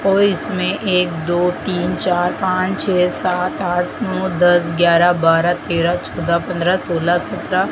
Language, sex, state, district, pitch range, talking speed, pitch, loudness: Hindi, female, Madhya Pradesh, Dhar, 175-185 Hz, 155 wpm, 180 Hz, -17 LUFS